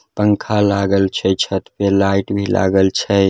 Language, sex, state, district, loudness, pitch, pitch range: Hindi, male, Bihar, Darbhanga, -16 LUFS, 100 Hz, 95-100 Hz